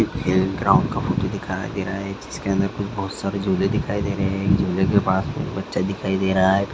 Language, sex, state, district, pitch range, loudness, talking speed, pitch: Hindi, female, Andhra Pradesh, Anantapur, 95-100 Hz, -22 LUFS, 240 wpm, 95 Hz